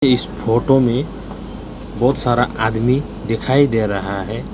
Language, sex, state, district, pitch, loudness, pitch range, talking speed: Hindi, male, West Bengal, Alipurduar, 120 Hz, -17 LUFS, 110-130 Hz, 130 wpm